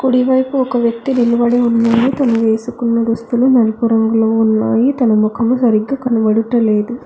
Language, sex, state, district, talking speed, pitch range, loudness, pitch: Telugu, female, Telangana, Hyderabad, 125 wpm, 225-250 Hz, -14 LUFS, 235 Hz